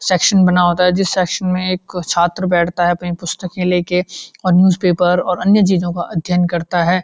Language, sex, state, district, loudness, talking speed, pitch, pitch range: Hindi, male, Uttarakhand, Uttarkashi, -15 LUFS, 220 wpm, 180 Hz, 175-185 Hz